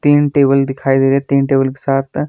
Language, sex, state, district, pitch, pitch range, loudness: Hindi, male, Himachal Pradesh, Shimla, 135 Hz, 135-140 Hz, -14 LUFS